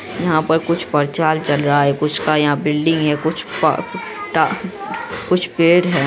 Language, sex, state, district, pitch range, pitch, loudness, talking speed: Hindi, female, Bihar, Araria, 150-175 Hz, 155 Hz, -17 LUFS, 180 wpm